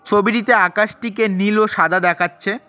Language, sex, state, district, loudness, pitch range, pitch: Bengali, male, West Bengal, Cooch Behar, -16 LUFS, 185-220 Hz, 205 Hz